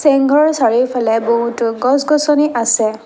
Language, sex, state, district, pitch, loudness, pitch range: Assamese, female, Assam, Kamrup Metropolitan, 245 Hz, -14 LUFS, 230-290 Hz